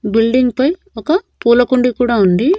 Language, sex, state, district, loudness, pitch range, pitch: Telugu, female, Andhra Pradesh, Annamaya, -14 LUFS, 225-275 Hz, 250 Hz